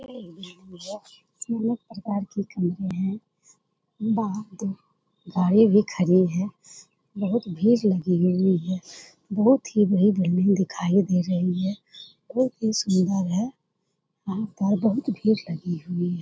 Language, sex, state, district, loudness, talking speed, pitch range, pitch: Hindi, female, Bihar, Jamui, -24 LUFS, 145 wpm, 180-215 Hz, 190 Hz